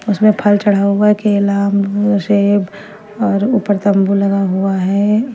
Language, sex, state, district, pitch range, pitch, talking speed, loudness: Hindi, female, Punjab, Fazilka, 200-210 Hz, 205 Hz, 155 wpm, -14 LUFS